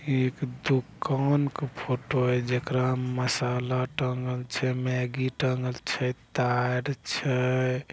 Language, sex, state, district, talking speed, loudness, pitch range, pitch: Angika, male, Bihar, Begusarai, 105 wpm, -28 LUFS, 125-130 Hz, 125 Hz